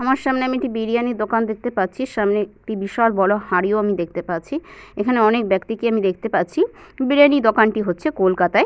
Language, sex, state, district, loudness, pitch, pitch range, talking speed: Bengali, female, West Bengal, Purulia, -19 LUFS, 220 Hz, 200-260 Hz, 195 wpm